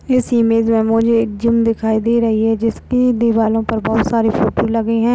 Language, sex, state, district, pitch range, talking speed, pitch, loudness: Hindi, female, Uttar Pradesh, Jyotiba Phule Nagar, 225-235 Hz, 210 wpm, 225 Hz, -15 LUFS